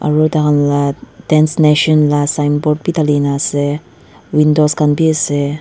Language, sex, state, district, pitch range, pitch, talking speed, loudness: Nagamese, female, Nagaland, Dimapur, 145-155 Hz, 150 Hz, 140 wpm, -13 LUFS